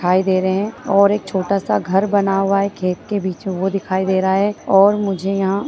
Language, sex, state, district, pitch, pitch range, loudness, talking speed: Hindi, female, Bihar, Bhagalpur, 195 Hz, 190-200 Hz, -17 LUFS, 255 wpm